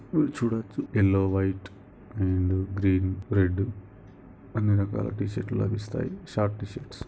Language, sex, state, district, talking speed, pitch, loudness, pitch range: Telugu, male, Telangana, Karimnagar, 125 wpm, 100 Hz, -27 LUFS, 95-115 Hz